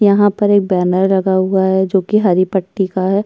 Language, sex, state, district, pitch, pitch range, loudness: Hindi, female, Uttar Pradesh, Jyotiba Phule Nagar, 190 Hz, 185-200 Hz, -14 LUFS